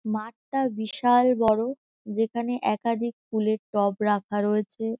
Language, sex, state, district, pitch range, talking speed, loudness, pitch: Bengali, female, West Bengal, Kolkata, 215-235 Hz, 110 wpm, -25 LUFS, 225 Hz